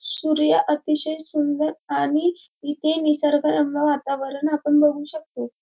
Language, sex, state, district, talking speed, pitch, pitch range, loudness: Marathi, female, Maharashtra, Dhule, 115 wpm, 295 Hz, 290-310 Hz, -21 LUFS